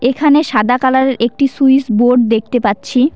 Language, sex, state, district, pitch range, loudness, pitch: Bengali, female, West Bengal, Cooch Behar, 235-265 Hz, -12 LUFS, 255 Hz